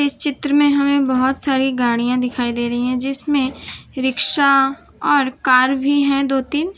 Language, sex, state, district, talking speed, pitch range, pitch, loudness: Hindi, female, Gujarat, Valsad, 160 wpm, 255-285 Hz, 270 Hz, -17 LUFS